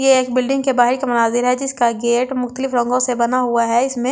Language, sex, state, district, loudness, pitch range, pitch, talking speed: Hindi, female, Delhi, New Delhi, -17 LUFS, 240-255 Hz, 250 Hz, 275 wpm